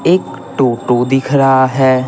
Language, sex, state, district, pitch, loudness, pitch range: Hindi, male, Bihar, Patna, 130 Hz, -13 LUFS, 130-135 Hz